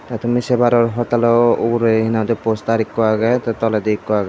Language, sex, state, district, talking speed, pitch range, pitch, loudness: Chakma, male, Tripura, Dhalai, 225 wpm, 110-120 Hz, 115 Hz, -16 LUFS